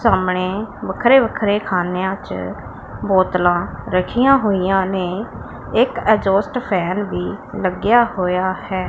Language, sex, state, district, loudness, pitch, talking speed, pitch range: Punjabi, female, Punjab, Pathankot, -18 LUFS, 190 Hz, 110 wpm, 185-215 Hz